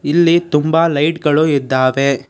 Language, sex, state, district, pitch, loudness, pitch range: Kannada, male, Karnataka, Bangalore, 150 Hz, -14 LUFS, 140-165 Hz